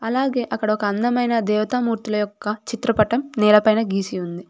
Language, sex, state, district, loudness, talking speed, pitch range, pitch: Telugu, female, Telangana, Komaram Bheem, -20 LUFS, 135 wpm, 210-235 Hz, 215 Hz